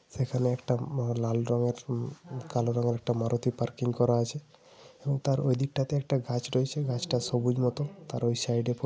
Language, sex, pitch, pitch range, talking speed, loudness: Bengali, male, 125 Hz, 120-135 Hz, 190 wpm, -30 LUFS